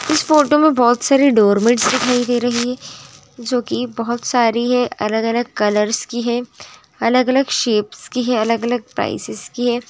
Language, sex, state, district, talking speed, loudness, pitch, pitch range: Hindi, female, Maharashtra, Nagpur, 165 wpm, -17 LUFS, 245 Hz, 235-250 Hz